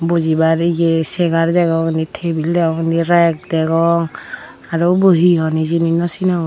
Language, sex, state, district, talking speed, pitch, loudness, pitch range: Chakma, female, Tripura, Dhalai, 160 wpm, 165 Hz, -15 LUFS, 165-170 Hz